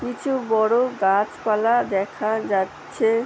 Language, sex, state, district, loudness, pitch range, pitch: Bengali, female, West Bengal, Paschim Medinipur, -22 LUFS, 205-240 Hz, 220 Hz